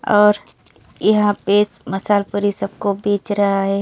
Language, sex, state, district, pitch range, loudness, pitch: Hindi, female, Delhi, New Delhi, 200-205 Hz, -18 LUFS, 205 Hz